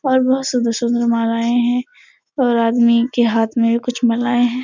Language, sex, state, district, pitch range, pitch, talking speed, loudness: Hindi, female, Bihar, Supaul, 235-250 Hz, 240 Hz, 180 wpm, -16 LUFS